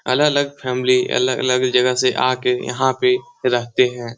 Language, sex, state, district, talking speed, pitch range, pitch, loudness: Hindi, male, Bihar, Lakhisarai, 160 wpm, 125-130 Hz, 130 Hz, -18 LUFS